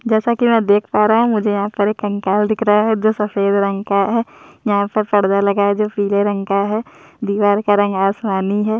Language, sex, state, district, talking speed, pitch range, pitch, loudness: Hindi, male, Chhattisgarh, Sukma, 230 wpm, 200-215 Hz, 205 Hz, -16 LUFS